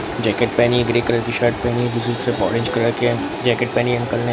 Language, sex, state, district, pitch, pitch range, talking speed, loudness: Hindi, male, Bihar, Araria, 120 Hz, 115-120 Hz, 265 wpm, -19 LUFS